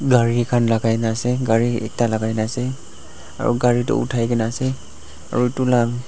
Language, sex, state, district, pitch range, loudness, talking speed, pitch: Nagamese, male, Nagaland, Dimapur, 115-125 Hz, -20 LUFS, 195 wpm, 120 Hz